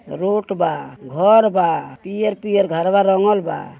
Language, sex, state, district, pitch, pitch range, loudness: Bhojpuri, male, Uttar Pradesh, Gorakhpur, 195 Hz, 170-205 Hz, -17 LUFS